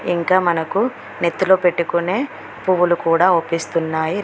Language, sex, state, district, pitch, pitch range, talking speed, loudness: Telugu, female, Telangana, Mahabubabad, 175 Hz, 165-185 Hz, 100 wpm, -18 LUFS